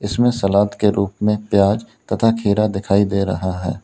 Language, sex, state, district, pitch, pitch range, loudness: Hindi, male, Uttar Pradesh, Lalitpur, 100 Hz, 100-110 Hz, -18 LUFS